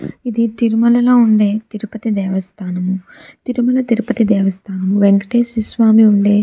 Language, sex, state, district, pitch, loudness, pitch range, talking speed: Telugu, female, Andhra Pradesh, Chittoor, 220 Hz, -15 LUFS, 200-235 Hz, 120 wpm